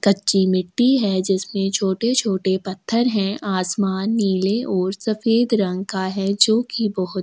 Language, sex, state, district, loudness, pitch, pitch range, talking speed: Hindi, female, Chhattisgarh, Sukma, -20 LUFS, 195 Hz, 190-220 Hz, 140 wpm